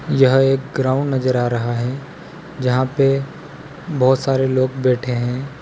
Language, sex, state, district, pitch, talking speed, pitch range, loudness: Hindi, male, Gujarat, Valsad, 135 Hz, 150 wpm, 130-140 Hz, -18 LUFS